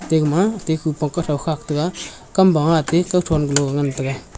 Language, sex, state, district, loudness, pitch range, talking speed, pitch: Wancho, male, Arunachal Pradesh, Longding, -19 LUFS, 150-170 Hz, 190 wpm, 155 Hz